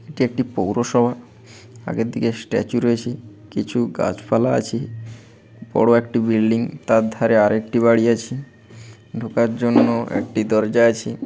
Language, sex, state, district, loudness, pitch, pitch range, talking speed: Bengali, male, West Bengal, Paschim Medinipur, -19 LUFS, 115 Hz, 110-120 Hz, 125 wpm